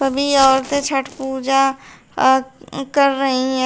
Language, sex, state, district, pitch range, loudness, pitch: Hindi, female, Uttar Pradesh, Shamli, 265-275 Hz, -17 LUFS, 270 Hz